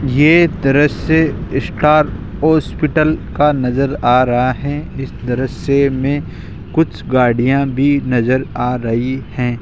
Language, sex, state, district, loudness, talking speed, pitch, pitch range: Hindi, male, Rajasthan, Jaipur, -15 LUFS, 120 wpm, 135 Hz, 125-145 Hz